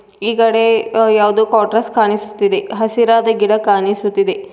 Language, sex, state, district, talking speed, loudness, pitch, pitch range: Kannada, female, Karnataka, Koppal, 105 wpm, -14 LUFS, 220 Hz, 210-230 Hz